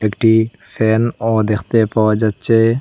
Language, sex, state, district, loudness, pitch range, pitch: Bengali, male, Assam, Hailakandi, -15 LUFS, 110-115 Hz, 110 Hz